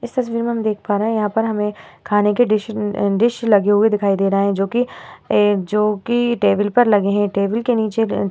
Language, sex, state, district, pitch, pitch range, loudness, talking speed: Hindi, female, Uttar Pradesh, Hamirpur, 210 Hz, 205-225 Hz, -18 LUFS, 245 wpm